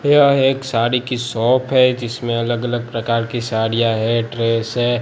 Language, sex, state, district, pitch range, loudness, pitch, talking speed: Hindi, male, Gujarat, Gandhinagar, 115-125 Hz, -17 LUFS, 120 Hz, 180 wpm